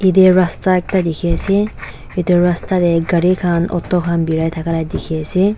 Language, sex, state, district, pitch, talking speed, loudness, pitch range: Nagamese, female, Nagaland, Dimapur, 175 Hz, 170 wpm, -16 LUFS, 170-185 Hz